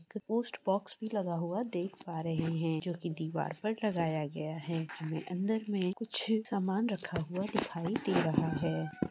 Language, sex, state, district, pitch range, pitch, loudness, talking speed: Hindi, female, Jharkhand, Jamtara, 165-210 Hz, 175 Hz, -35 LUFS, 170 wpm